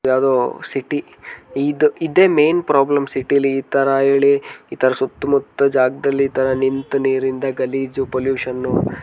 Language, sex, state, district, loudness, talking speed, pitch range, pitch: Kannada, male, Karnataka, Dharwad, -17 LUFS, 85 wpm, 130-140 Hz, 135 Hz